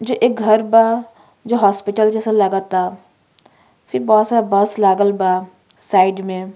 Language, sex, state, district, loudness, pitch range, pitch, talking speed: Bhojpuri, female, Uttar Pradesh, Ghazipur, -16 LUFS, 190-220 Hz, 205 Hz, 135 wpm